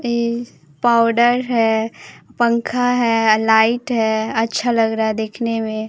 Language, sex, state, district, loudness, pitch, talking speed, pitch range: Hindi, female, Bihar, Katihar, -17 LUFS, 230 Hz, 130 wpm, 220-235 Hz